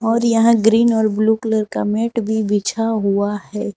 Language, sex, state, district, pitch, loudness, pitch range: Hindi, female, Jharkhand, Garhwa, 220 Hz, -17 LUFS, 210-225 Hz